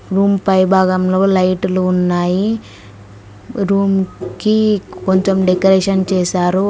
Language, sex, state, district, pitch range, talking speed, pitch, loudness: Telugu, female, Telangana, Mahabubabad, 180-195 Hz, 90 wpm, 190 Hz, -15 LUFS